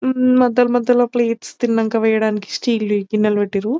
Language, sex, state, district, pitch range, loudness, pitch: Telugu, female, Telangana, Nalgonda, 215-245 Hz, -17 LUFS, 230 Hz